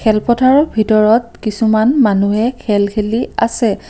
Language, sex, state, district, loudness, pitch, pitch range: Assamese, female, Assam, Kamrup Metropolitan, -13 LUFS, 220 Hz, 215-240 Hz